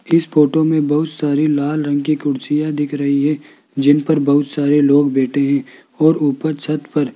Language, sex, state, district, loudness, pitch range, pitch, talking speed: Hindi, male, Rajasthan, Jaipur, -16 LUFS, 145-155 Hz, 145 Hz, 200 wpm